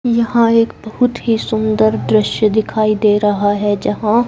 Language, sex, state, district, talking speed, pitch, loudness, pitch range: Hindi, female, Haryana, Jhajjar, 155 wpm, 220 Hz, -15 LUFS, 210-230 Hz